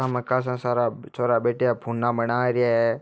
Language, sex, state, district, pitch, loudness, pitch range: Marwari, male, Rajasthan, Nagaur, 120 Hz, -23 LUFS, 115-125 Hz